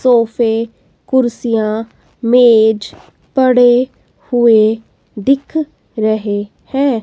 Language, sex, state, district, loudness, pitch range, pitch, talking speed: Hindi, female, Himachal Pradesh, Shimla, -14 LUFS, 220-255 Hz, 235 Hz, 70 wpm